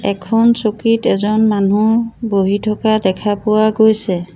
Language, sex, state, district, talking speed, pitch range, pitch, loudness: Assamese, female, Assam, Sonitpur, 125 wpm, 200-220 Hz, 215 Hz, -14 LUFS